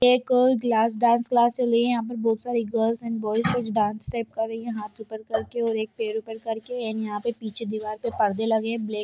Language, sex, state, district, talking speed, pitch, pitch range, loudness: Hindi, female, Bihar, Lakhisarai, 245 wpm, 225 Hz, 220-235 Hz, -25 LUFS